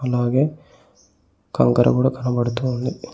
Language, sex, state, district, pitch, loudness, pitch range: Telugu, male, Telangana, Mahabubabad, 125 Hz, -20 LUFS, 120-130 Hz